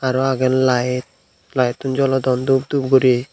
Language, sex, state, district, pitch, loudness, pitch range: Chakma, male, Tripura, Unakoti, 130 Hz, -18 LUFS, 125-135 Hz